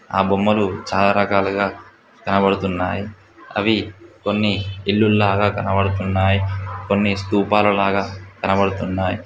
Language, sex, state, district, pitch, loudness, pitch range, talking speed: Telugu, male, Telangana, Mahabubabad, 100 Hz, -19 LUFS, 95-105 Hz, 90 wpm